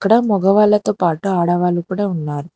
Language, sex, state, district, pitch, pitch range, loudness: Telugu, female, Telangana, Hyderabad, 185 Hz, 175-205 Hz, -16 LUFS